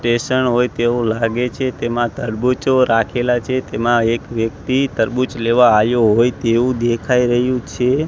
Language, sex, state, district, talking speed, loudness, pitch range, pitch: Gujarati, male, Gujarat, Gandhinagar, 150 wpm, -16 LUFS, 115-125 Hz, 120 Hz